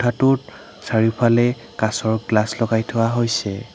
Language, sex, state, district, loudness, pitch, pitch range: Assamese, male, Assam, Hailakandi, -19 LUFS, 115 Hz, 110-120 Hz